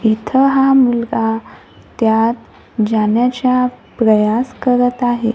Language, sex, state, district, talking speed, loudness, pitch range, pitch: Marathi, female, Maharashtra, Gondia, 90 wpm, -15 LUFS, 225-250 Hz, 235 Hz